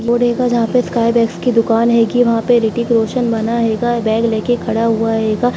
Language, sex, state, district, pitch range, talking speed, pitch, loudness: Hindi, female, Bihar, Sitamarhi, 225-240 Hz, 205 wpm, 230 Hz, -15 LUFS